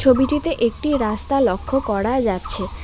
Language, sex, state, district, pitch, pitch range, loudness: Bengali, female, West Bengal, Alipurduar, 260 Hz, 220-275 Hz, -18 LUFS